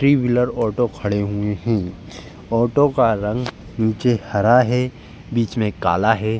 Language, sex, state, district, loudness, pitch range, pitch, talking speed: Hindi, male, Uttar Pradesh, Jalaun, -19 LUFS, 105-125 Hz, 115 Hz, 150 wpm